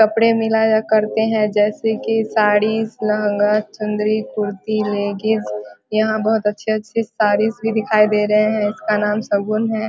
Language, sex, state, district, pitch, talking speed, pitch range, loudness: Hindi, female, Bihar, Vaishali, 215 Hz, 150 wpm, 210-220 Hz, -18 LUFS